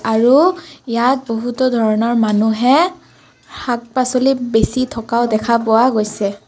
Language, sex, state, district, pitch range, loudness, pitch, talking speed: Assamese, female, Assam, Kamrup Metropolitan, 225-255 Hz, -15 LUFS, 235 Hz, 100 wpm